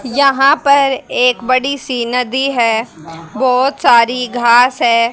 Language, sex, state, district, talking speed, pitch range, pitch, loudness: Hindi, female, Haryana, Jhajjar, 130 wpm, 235-275 Hz, 250 Hz, -12 LUFS